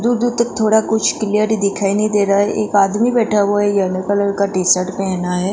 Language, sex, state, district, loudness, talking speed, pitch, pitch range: Hindi, female, Goa, North and South Goa, -16 LUFS, 225 wpm, 205 Hz, 195-220 Hz